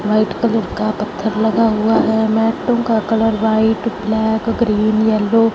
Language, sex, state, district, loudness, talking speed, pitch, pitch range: Hindi, female, Punjab, Fazilka, -16 LUFS, 160 wpm, 220 Hz, 215-225 Hz